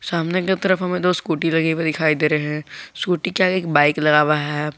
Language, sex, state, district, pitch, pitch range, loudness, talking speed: Hindi, male, Jharkhand, Garhwa, 160 Hz, 150-180 Hz, -19 LUFS, 250 wpm